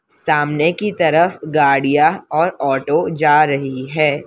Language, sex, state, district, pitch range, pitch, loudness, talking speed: Hindi, female, Maharashtra, Mumbai Suburban, 140-160 Hz, 150 Hz, -16 LUFS, 125 wpm